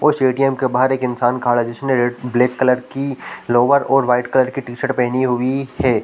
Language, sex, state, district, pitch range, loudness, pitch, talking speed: Hindi, male, Chhattisgarh, Korba, 125-135 Hz, -17 LUFS, 130 Hz, 230 wpm